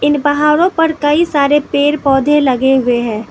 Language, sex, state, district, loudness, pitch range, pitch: Hindi, female, Manipur, Imphal West, -12 LUFS, 265-295 Hz, 290 Hz